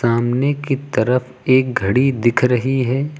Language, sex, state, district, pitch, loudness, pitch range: Hindi, male, Uttar Pradesh, Lucknow, 125 Hz, -17 LUFS, 120-135 Hz